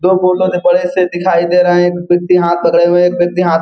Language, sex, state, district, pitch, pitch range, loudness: Hindi, male, Bihar, Gopalganj, 175 Hz, 175-180 Hz, -11 LUFS